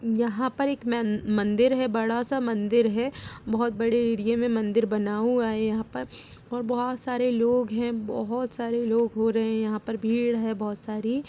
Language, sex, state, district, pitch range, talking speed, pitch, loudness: Hindi, female, Uttar Pradesh, Jalaun, 220-240 Hz, 195 wpm, 230 Hz, -26 LUFS